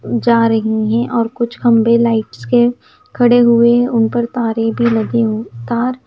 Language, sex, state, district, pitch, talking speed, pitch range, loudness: Hindi, female, Himachal Pradesh, Shimla, 235 Hz, 170 wpm, 225-240 Hz, -14 LUFS